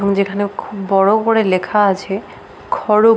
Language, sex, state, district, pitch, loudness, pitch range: Bengali, female, West Bengal, Paschim Medinipur, 200 Hz, -16 LUFS, 195-210 Hz